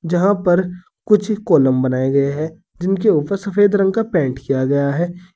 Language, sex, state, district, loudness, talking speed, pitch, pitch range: Hindi, male, Uttar Pradesh, Saharanpur, -17 LUFS, 180 wpm, 175 Hz, 140-200 Hz